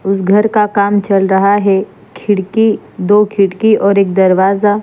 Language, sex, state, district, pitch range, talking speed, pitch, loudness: Hindi, female, Punjab, Fazilka, 195-210 Hz, 160 wpm, 200 Hz, -12 LUFS